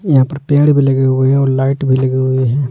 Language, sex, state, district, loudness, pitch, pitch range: Hindi, male, Delhi, New Delhi, -13 LUFS, 135 Hz, 130-140 Hz